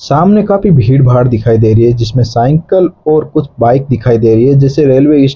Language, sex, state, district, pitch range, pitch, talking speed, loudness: Hindi, male, Rajasthan, Bikaner, 120-155 Hz, 135 Hz, 225 wpm, -9 LUFS